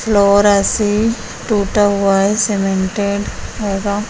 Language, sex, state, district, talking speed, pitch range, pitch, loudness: Hindi, female, Bihar, Vaishali, 100 wpm, 200-210 Hz, 205 Hz, -15 LUFS